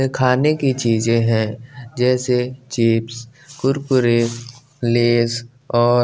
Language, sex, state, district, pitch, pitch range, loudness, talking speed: Hindi, male, Bihar, West Champaran, 120 Hz, 115-130 Hz, -18 LUFS, 90 wpm